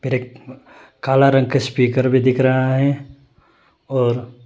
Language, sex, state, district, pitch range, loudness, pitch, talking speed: Hindi, male, Arunachal Pradesh, Lower Dibang Valley, 125-135 Hz, -17 LUFS, 130 Hz, 150 wpm